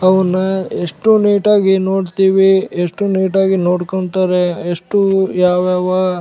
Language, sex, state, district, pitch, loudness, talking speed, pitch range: Kannada, male, Karnataka, Bellary, 190 Hz, -14 LUFS, 105 wpm, 180-195 Hz